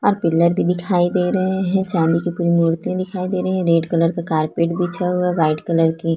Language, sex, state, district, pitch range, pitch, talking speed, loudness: Hindi, female, Chhattisgarh, Korba, 165-185 Hz, 175 Hz, 225 wpm, -18 LUFS